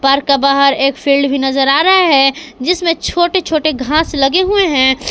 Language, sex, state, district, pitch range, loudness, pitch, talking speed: Hindi, female, Jharkhand, Palamu, 275-335 Hz, -12 LUFS, 280 Hz, 200 wpm